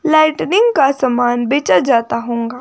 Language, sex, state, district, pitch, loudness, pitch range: Hindi, female, Himachal Pradesh, Shimla, 255 Hz, -14 LUFS, 240-310 Hz